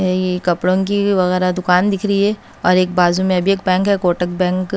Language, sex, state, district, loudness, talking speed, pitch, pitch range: Hindi, female, Haryana, Charkhi Dadri, -16 LUFS, 225 wpm, 185 Hz, 180-195 Hz